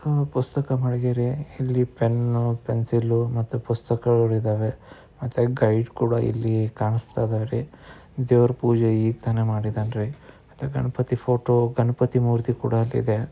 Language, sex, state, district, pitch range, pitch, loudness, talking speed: Kannada, male, Karnataka, Dharwad, 115-125 Hz, 120 Hz, -23 LUFS, 130 wpm